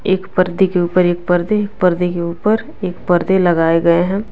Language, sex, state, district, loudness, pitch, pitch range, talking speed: Hindi, female, Bihar, West Champaran, -15 LUFS, 180 Hz, 175-190 Hz, 210 wpm